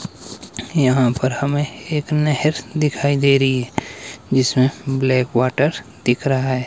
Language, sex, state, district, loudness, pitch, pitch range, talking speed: Hindi, male, Himachal Pradesh, Shimla, -19 LUFS, 135 Hz, 130-145 Hz, 115 wpm